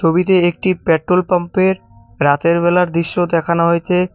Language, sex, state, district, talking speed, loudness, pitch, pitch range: Bengali, male, West Bengal, Cooch Behar, 130 wpm, -15 LUFS, 175 Hz, 165-180 Hz